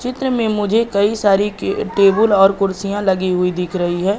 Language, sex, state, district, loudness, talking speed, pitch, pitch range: Hindi, male, Madhya Pradesh, Katni, -16 LUFS, 200 wpm, 200 Hz, 190-215 Hz